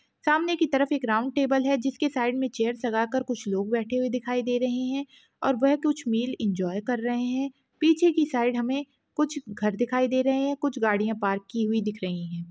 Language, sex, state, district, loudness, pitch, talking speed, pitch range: Hindi, female, Uttarakhand, Tehri Garhwal, -26 LUFS, 250 Hz, 225 wpm, 225-275 Hz